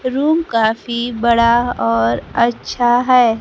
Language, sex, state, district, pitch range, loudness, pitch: Hindi, female, Bihar, Kaimur, 225-245 Hz, -15 LUFS, 235 Hz